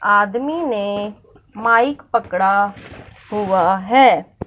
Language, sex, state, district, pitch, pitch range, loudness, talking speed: Hindi, male, Punjab, Fazilka, 210 Hz, 200-245 Hz, -17 LUFS, 80 wpm